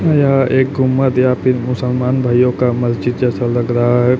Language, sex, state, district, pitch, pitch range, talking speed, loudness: Hindi, male, Chhattisgarh, Raipur, 125 Hz, 125-130 Hz, 185 wpm, -14 LUFS